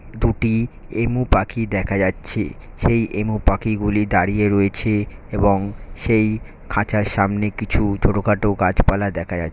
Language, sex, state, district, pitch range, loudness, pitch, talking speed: Bengali, male, West Bengal, Malda, 100-110 Hz, -20 LUFS, 105 Hz, 125 wpm